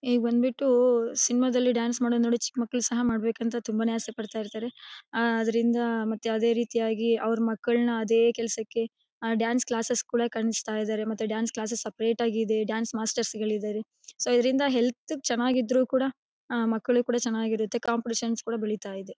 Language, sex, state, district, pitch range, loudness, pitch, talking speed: Kannada, female, Karnataka, Bellary, 225-240 Hz, -27 LUFS, 230 Hz, 150 wpm